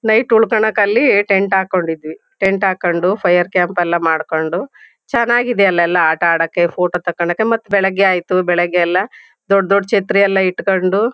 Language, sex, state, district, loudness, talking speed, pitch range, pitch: Kannada, female, Karnataka, Shimoga, -15 LUFS, 150 wpm, 175-205 Hz, 190 Hz